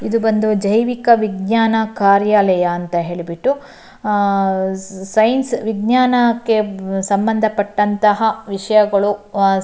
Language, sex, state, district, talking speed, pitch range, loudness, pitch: Kannada, female, Karnataka, Shimoga, 80 wpm, 195-225 Hz, -16 LUFS, 210 Hz